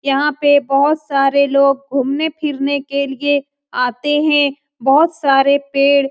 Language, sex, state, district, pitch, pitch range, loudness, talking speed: Hindi, female, Bihar, Lakhisarai, 280 Hz, 275-290 Hz, -15 LUFS, 135 wpm